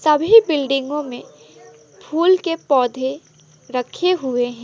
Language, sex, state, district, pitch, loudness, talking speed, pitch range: Hindi, female, West Bengal, Alipurduar, 270 Hz, -18 LUFS, 115 wpm, 245-320 Hz